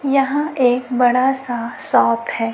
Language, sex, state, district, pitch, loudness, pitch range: Hindi, female, Chhattisgarh, Raipur, 250 Hz, -17 LUFS, 230-270 Hz